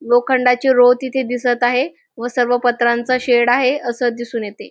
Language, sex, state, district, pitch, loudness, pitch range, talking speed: Marathi, female, Maharashtra, Aurangabad, 245 Hz, -16 LUFS, 240-260 Hz, 165 wpm